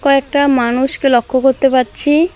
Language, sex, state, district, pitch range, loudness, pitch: Bengali, female, West Bengal, Alipurduar, 255-285 Hz, -13 LUFS, 270 Hz